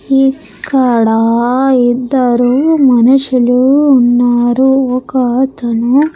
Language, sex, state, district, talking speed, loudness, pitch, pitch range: Telugu, female, Andhra Pradesh, Sri Satya Sai, 60 wpm, -10 LUFS, 255 Hz, 245-270 Hz